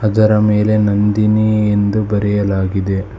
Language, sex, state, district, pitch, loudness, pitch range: Kannada, male, Karnataka, Bangalore, 105 Hz, -14 LUFS, 100-105 Hz